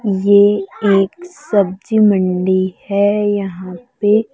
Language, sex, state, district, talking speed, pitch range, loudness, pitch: Hindi, female, Chhattisgarh, Raipur, 95 wpm, 190-210 Hz, -15 LUFS, 200 Hz